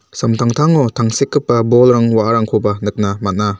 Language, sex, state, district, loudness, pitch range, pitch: Garo, male, Meghalaya, South Garo Hills, -14 LUFS, 105-120 Hz, 115 Hz